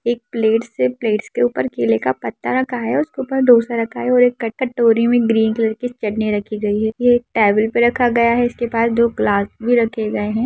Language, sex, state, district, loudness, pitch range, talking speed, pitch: Hindi, female, Bihar, Saharsa, -17 LUFS, 215-240 Hz, 240 wpm, 230 Hz